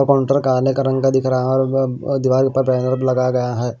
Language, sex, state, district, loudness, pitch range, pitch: Hindi, male, Maharashtra, Washim, -17 LUFS, 130-135 Hz, 130 Hz